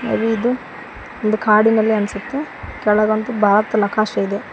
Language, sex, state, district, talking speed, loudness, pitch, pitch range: Kannada, female, Karnataka, Koppal, 130 wpm, -17 LUFS, 215 Hz, 210-225 Hz